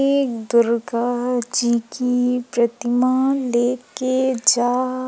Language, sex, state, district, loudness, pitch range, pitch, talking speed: Hindi, female, Madhya Pradesh, Umaria, -19 LUFS, 240-255 Hz, 245 Hz, 85 wpm